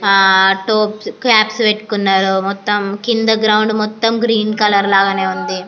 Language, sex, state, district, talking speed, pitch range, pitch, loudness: Telugu, female, Andhra Pradesh, Anantapur, 105 wpm, 195-220 Hz, 210 Hz, -14 LUFS